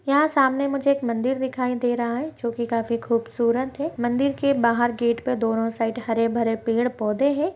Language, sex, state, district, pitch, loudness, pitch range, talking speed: Hindi, female, Maharashtra, Dhule, 240 Hz, -23 LUFS, 230-275 Hz, 205 wpm